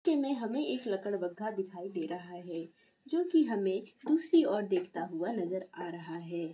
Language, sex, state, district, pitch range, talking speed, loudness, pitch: Hindi, female, West Bengal, Kolkata, 175-255 Hz, 175 wpm, -34 LUFS, 190 Hz